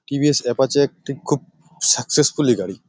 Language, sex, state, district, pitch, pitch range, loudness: Bengali, male, West Bengal, Jalpaiguri, 145 Hz, 135-155 Hz, -19 LUFS